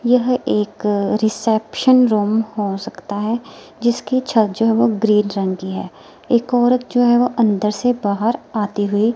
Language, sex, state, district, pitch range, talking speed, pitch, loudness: Hindi, female, Himachal Pradesh, Shimla, 210-240 Hz, 155 wpm, 220 Hz, -18 LUFS